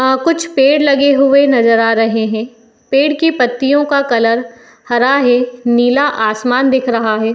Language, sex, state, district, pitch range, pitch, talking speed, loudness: Hindi, female, Uttar Pradesh, Etah, 230-275 Hz, 250 Hz, 170 wpm, -12 LUFS